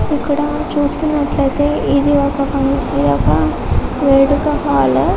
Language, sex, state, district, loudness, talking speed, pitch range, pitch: Telugu, female, Telangana, Karimnagar, -15 LUFS, 80 wpm, 275-295 Hz, 285 Hz